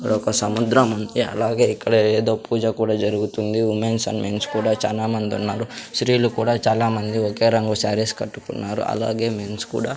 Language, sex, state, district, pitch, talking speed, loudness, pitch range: Telugu, male, Andhra Pradesh, Sri Satya Sai, 110 Hz, 150 wpm, -21 LUFS, 105-115 Hz